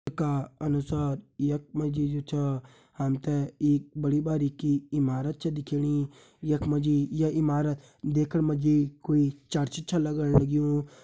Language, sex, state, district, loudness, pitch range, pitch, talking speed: Hindi, male, Uttarakhand, Uttarkashi, -28 LUFS, 140-150 Hz, 145 Hz, 150 wpm